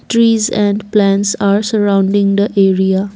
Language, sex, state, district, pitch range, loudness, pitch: English, female, Assam, Kamrup Metropolitan, 195-215 Hz, -13 LUFS, 200 Hz